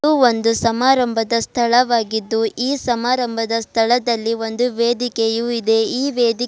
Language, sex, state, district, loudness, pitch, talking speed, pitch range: Kannada, female, Karnataka, Bidar, -18 LUFS, 235 Hz, 120 wpm, 225-245 Hz